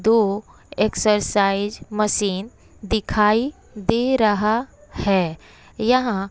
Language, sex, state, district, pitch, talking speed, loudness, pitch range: Hindi, female, Bihar, West Champaran, 210 Hz, 75 wpm, -21 LUFS, 205-225 Hz